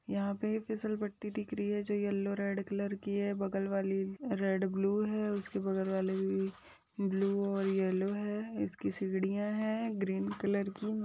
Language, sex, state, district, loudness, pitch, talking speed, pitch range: Hindi, female, Uttar Pradesh, Jyotiba Phule Nagar, -35 LUFS, 200 Hz, 180 wpm, 195-210 Hz